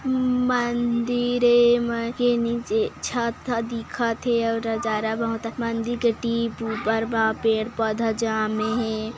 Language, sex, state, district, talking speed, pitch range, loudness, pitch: Hindi, female, Chhattisgarh, Kabirdham, 135 wpm, 225-240 Hz, -23 LUFS, 230 Hz